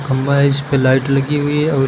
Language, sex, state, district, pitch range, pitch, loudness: Hindi, male, Uttar Pradesh, Lucknow, 135-145 Hz, 140 Hz, -15 LUFS